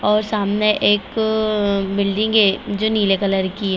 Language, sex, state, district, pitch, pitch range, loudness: Hindi, female, Bihar, Gopalganj, 205 Hz, 195-215 Hz, -18 LUFS